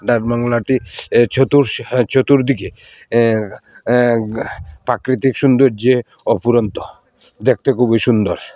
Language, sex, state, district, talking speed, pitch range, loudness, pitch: Bengali, male, Tripura, Unakoti, 85 wpm, 115-130 Hz, -15 LUFS, 120 Hz